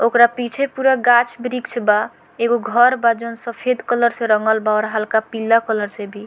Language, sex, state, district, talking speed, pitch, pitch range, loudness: Bhojpuri, female, Bihar, Muzaffarpur, 180 wpm, 235 Hz, 220-245 Hz, -17 LUFS